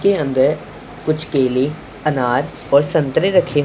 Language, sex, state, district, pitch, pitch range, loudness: Hindi, male, Punjab, Pathankot, 145 Hz, 135-155 Hz, -17 LUFS